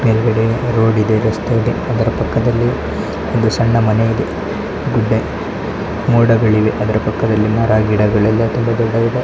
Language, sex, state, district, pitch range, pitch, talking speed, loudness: Kannada, male, Karnataka, Chamarajanagar, 110-115 Hz, 115 Hz, 135 wpm, -15 LUFS